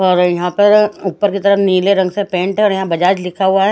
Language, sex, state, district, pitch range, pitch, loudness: Hindi, female, Odisha, Khordha, 180-200 Hz, 190 Hz, -14 LUFS